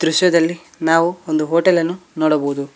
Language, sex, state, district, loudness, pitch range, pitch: Kannada, male, Karnataka, Koppal, -17 LUFS, 155-175 Hz, 165 Hz